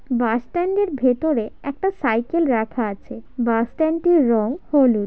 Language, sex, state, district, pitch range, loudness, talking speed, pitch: Bengali, female, West Bengal, Paschim Medinipur, 230-320 Hz, -20 LUFS, 140 wpm, 255 Hz